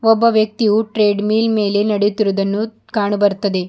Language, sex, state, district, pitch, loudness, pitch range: Kannada, female, Karnataka, Bidar, 210 Hz, -16 LUFS, 205-220 Hz